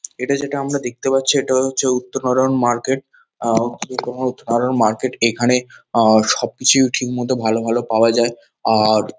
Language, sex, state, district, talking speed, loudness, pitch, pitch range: Bengali, male, West Bengal, North 24 Parganas, 135 wpm, -18 LUFS, 125 Hz, 115-130 Hz